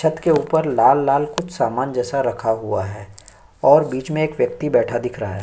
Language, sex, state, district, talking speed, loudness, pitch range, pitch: Hindi, male, Chhattisgarh, Sukma, 230 wpm, -19 LUFS, 110-150 Hz, 125 Hz